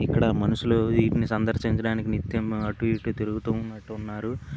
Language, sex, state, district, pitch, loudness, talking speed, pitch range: Telugu, male, Telangana, Nalgonda, 110 Hz, -26 LUFS, 120 wpm, 110-115 Hz